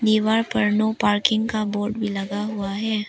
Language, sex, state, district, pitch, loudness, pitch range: Hindi, female, Arunachal Pradesh, Papum Pare, 215 Hz, -22 LUFS, 205-220 Hz